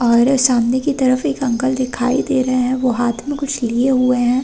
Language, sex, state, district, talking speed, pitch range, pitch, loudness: Hindi, female, Uttar Pradesh, Hamirpur, 230 wpm, 245-265 Hz, 255 Hz, -16 LUFS